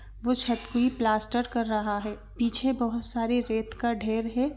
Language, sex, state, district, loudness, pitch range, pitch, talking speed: Hindi, female, Chhattisgarh, Bilaspur, -28 LUFS, 220-245 Hz, 235 Hz, 185 wpm